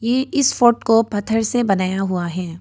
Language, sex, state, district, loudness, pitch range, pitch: Hindi, female, Arunachal Pradesh, Papum Pare, -18 LUFS, 185-240 Hz, 225 Hz